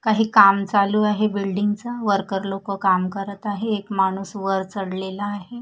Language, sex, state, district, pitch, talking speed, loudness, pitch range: Marathi, female, Maharashtra, Mumbai Suburban, 200 Hz, 150 wpm, -21 LUFS, 195-210 Hz